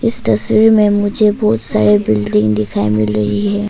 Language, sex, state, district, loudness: Hindi, female, Arunachal Pradesh, Papum Pare, -13 LUFS